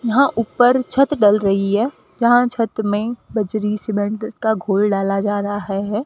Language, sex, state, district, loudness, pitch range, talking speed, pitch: Hindi, female, Rajasthan, Bikaner, -18 LUFS, 205-235 Hz, 170 wpm, 215 Hz